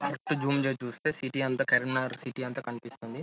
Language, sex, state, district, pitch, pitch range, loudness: Telugu, male, Telangana, Karimnagar, 130 Hz, 125-140 Hz, -30 LUFS